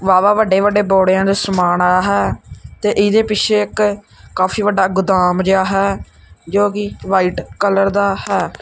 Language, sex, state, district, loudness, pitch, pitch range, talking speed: Punjabi, male, Punjab, Kapurthala, -15 LUFS, 195 Hz, 180-205 Hz, 160 wpm